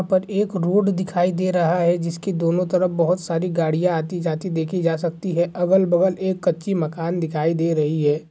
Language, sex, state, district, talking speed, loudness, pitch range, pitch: Hindi, male, Bihar, Gaya, 195 wpm, -21 LUFS, 165-185 Hz, 175 Hz